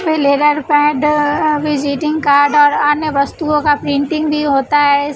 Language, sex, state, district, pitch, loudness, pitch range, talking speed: Hindi, female, Bihar, West Champaran, 295 Hz, -13 LUFS, 285-300 Hz, 130 wpm